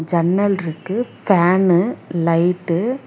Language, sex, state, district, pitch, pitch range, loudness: Tamil, female, Karnataka, Bangalore, 180 Hz, 170-200 Hz, -18 LUFS